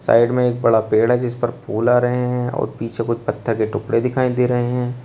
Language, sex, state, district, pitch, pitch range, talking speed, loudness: Hindi, male, Uttar Pradesh, Shamli, 120 Hz, 115-125 Hz, 260 wpm, -19 LUFS